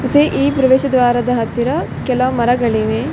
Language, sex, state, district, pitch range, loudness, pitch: Kannada, female, Karnataka, Dakshina Kannada, 240-260 Hz, -15 LUFS, 250 Hz